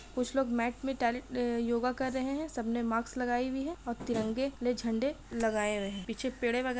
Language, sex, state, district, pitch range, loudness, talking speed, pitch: Hindi, female, Bihar, Madhepura, 235-260 Hz, -33 LUFS, 230 wpm, 245 Hz